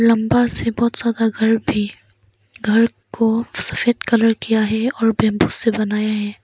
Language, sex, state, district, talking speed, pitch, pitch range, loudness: Hindi, female, Arunachal Pradesh, Lower Dibang Valley, 160 wpm, 225 Hz, 210-230 Hz, -18 LUFS